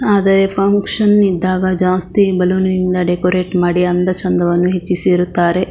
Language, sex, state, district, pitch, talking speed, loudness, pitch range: Kannada, female, Karnataka, Shimoga, 185 Hz, 115 wpm, -13 LUFS, 180-195 Hz